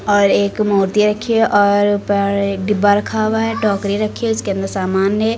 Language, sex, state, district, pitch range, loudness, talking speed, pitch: Hindi, female, Uttar Pradesh, Lucknow, 200-215 Hz, -16 LUFS, 210 wpm, 205 Hz